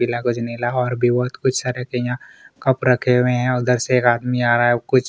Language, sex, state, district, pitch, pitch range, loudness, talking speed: Hindi, male, Chhattisgarh, Kabirdham, 125 Hz, 120-125 Hz, -19 LUFS, 260 wpm